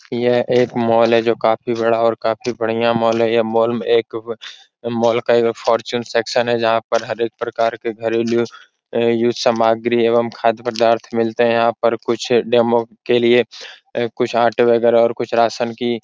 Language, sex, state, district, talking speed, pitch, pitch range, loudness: Hindi, male, Uttar Pradesh, Etah, 185 wpm, 115 Hz, 115-120 Hz, -17 LUFS